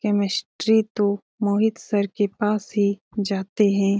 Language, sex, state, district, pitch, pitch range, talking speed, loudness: Hindi, female, Bihar, Lakhisarai, 205 Hz, 200-210 Hz, 135 wpm, -22 LUFS